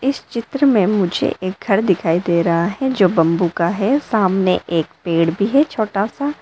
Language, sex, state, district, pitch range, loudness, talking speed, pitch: Hindi, female, Arunachal Pradesh, Lower Dibang Valley, 170-235 Hz, -17 LUFS, 195 wpm, 195 Hz